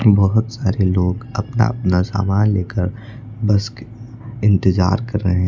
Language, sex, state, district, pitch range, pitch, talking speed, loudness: Hindi, male, Uttar Pradesh, Lucknow, 95-115 Hz, 105 Hz, 140 wpm, -18 LUFS